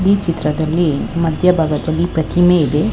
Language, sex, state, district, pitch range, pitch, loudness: Kannada, female, Karnataka, Bangalore, 155-175 Hz, 165 Hz, -15 LUFS